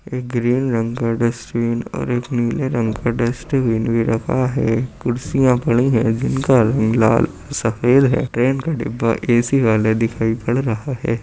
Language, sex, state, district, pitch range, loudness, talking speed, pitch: Hindi, male, Uttar Pradesh, Jyotiba Phule Nagar, 115-130 Hz, -18 LUFS, 170 wpm, 120 Hz